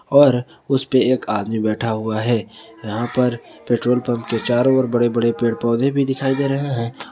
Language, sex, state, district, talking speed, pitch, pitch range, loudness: Hindi, male, Jharkhand, Garhwa, 205 wpm, 120 Hz, 115-130 Hz, -19 LUFS